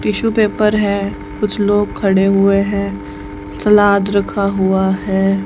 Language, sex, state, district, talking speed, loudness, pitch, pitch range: Hindi, female, Haryana, Charkhi Dadri, 130 wpm, -15 LUFS, 200 Hz, 190-205 Hz